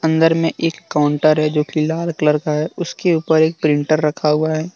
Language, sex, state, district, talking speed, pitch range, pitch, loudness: Hindi, male, Jharkhand, Deoghar, 225 wpm, 150-165 Hz, 155 Hz, -17 LUFS